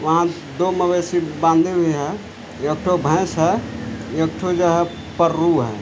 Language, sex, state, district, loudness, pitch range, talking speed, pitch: Hindi, male, Bihar, Supaul, -19 LUFS, 155-175 Hz, 165 wpm, 165 Hz